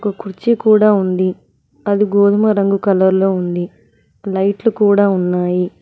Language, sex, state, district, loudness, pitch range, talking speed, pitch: Telugu, female, Telangana, Mahabubabad, -15 LUFS, 185-205 Hz, 135 wpm, 195 Hz